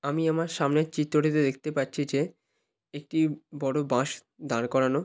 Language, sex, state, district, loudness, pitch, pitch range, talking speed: Bengali, male, West Bengal, Malda, -28 LUFS, 150 Hz, 140-155 Hz, 140 wpm